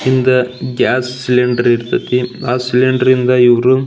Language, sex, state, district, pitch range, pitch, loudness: Kannada, male, Karnataka, Belgaum, 125-130 Hz, 125 Hz, -13 LUFS